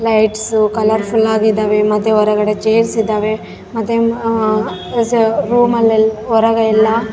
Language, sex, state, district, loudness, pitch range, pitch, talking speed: Kannada, female, Karnataka, Raichur, -14 LUFS, 215-225 Hz, 220 Hz, 120 wpm